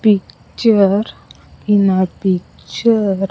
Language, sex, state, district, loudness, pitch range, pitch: English, female, Andhra Pradesh, Sri Satya Sai, -15 LUFS, 195-215 Hz, 200 Hz